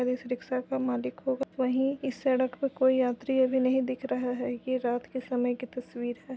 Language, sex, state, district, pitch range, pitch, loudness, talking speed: Hindi, female, Uttar Pradesh, Budaun, 245-260 Hz, 255 Hz, -29 LUFS, 200 wpm